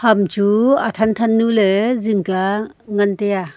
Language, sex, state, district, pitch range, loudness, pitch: Wancho, female, Arunachal Pradesh, Longding, 200-225 Hz, -17 LUFS, 210 Hz